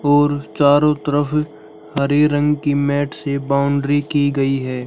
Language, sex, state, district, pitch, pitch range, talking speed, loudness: Hindi, male, Haryana, Jhajjar, 145 Hz, 140-145 Hz, 150 wpm, -17 LUFS